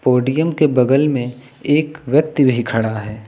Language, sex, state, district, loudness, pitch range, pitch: Hindi, male, Uttar Pradesh, Lucknow, -16 LUFS, 120-150 Hz, 130 Hz